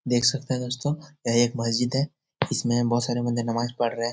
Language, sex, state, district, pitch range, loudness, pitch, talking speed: Hindi, male, Bihar, Jahanabad, 120-135 Hz, -25 LUFS, 120 Hz, 230 wpm